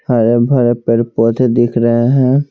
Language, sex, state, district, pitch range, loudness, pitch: Hindi, male, Bihar, Patna, 115-130 Hz, -12 LUFS, 120 Hz